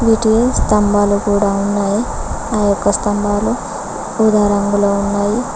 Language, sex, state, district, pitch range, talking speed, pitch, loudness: Telugu, female, Telangana, Mahabubabad, 205-215 Hz, 110 wpm, 205 Hz, -15 LUFS